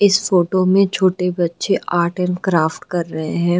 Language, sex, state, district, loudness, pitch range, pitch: Hindi, female, Uttar Pradesh, Gorakhpur, -17 LUFS, 170-185 Hz, 180 Hz